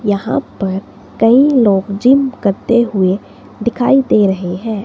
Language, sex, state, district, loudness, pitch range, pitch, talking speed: Hindi, female, Himachal Pradesh, Shimla, -14 LUFS, 195-240 Hz, 215 Hz, 135 wpm